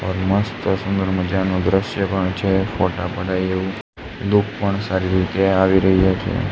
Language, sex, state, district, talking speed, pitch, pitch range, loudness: Gujarati, male, Gujarat, Gandhinagar, 145 wpm, 95 Hz, 95-100 Hz, -19 LUFS